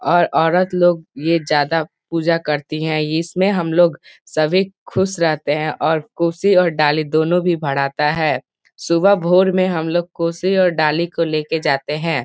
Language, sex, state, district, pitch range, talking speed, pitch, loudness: Hindi, male, Bihar, Gopalganj, 155-175 Hz, 170 wpm, 165 Hz, -17 LUFS